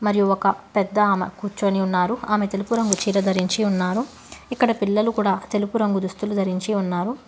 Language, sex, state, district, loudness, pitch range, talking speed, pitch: Telugu, female, Telangana, Hyderabad, -22 LUFS, 190-215 Hz, 165 wpm, 200 Hz